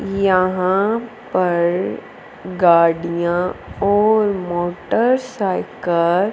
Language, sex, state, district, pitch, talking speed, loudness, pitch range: Hindi, female, Punjab, Fazilka, 185 Hz, 55 wpm, -18 LUFS, 175-205 Hz